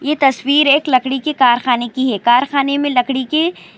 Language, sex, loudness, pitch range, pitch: Urdu, female, -14 LUFS, 250-285 Hz, 265 Hz